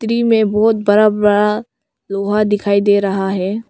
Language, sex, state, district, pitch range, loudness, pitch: Hindi, female, Arunachal Pradesh, Longding, 200-215 Hz, -14 LUFS, 210 Hz